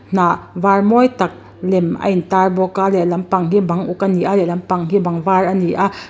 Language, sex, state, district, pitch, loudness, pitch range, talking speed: Mizo, female, Mizoram, Aizawl, 190 Hz, -16 LUFS, 180-195 Hz, 235 wpm